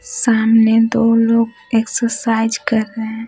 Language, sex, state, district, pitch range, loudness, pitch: Hindi, female, Bihar, Patna, 225-230 Hz, -15 LUFS, 225 Hz